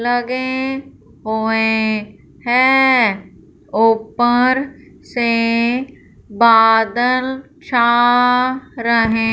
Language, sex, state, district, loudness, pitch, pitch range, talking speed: Hindi, female, Punjab, Fazilka, -15 LUFS, 240 Hz, 225-255 Hz, 50 wpm